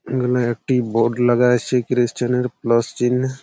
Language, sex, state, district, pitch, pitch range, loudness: Bengali, male, West Bengal, Malda, 125 Hz, 120-125 Hz, -19 LUFS